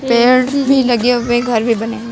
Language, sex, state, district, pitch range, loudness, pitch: Hindi, female, Uttar Pradesh, Lucknow, 230-255 Hz, -13 LUFS, 240 Hz